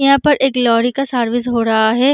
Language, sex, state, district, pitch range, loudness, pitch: Hindi, female, Uttar Pradesh, Jyotiba Phule Nagar, 230-275 Hz, -15 LUFS, 245 Hz